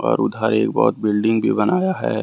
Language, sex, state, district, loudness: Hindi, male, Jharkhand, Ranchi, -18 LUFS